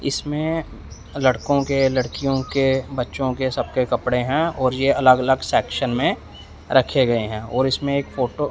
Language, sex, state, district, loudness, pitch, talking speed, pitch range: Hindi, male, Punjab, Pathankot, -20 LUFS, 130 Hz, 170 wpm, 130-140 Hz